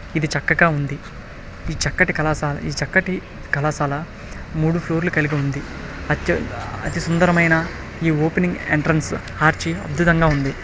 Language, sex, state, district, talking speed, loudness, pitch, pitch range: Telugu, male, Telangana, Nalgonda, 125 wpm, -20 LUFS, 160 Hz, 145-170 Hz